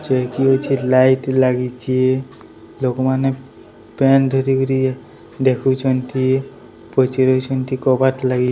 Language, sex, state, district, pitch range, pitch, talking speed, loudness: Odia, male, Odisha, Sambalpur, 130-135 Hz, 130 Hz, 40 wpm, -17 LUFS